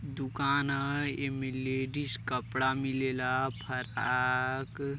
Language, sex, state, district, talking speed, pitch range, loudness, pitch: Bhojpuri, male, Uttar Pradesh, Deoria, 110 wpm, 130-140 Hz, -32 LUFS, 130 Hz